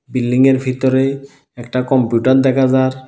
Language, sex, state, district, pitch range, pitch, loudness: Bengali, male, Tripura, South Tripura, 125-135 Hz, 130 Hz, -15 LUFS